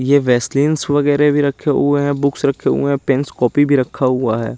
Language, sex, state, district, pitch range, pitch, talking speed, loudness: Hindi, male, Chandigarh, Chandigarh, 130-145 Hz, 140 Hz, 210 wpm, -16 LUFS